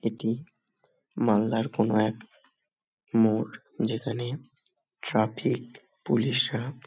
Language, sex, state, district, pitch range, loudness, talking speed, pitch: Bengali, male, West Bengal, Malda, 110-125 Hz, -28 LUFS, 80 wpm, 115 Hz